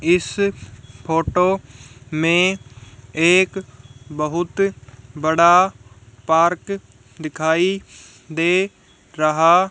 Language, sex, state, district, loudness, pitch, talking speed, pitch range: Hindi, female, Haryana, Jhajjar, -18 LUFS, 160 Hz, 60 wpm, 120-175 Hz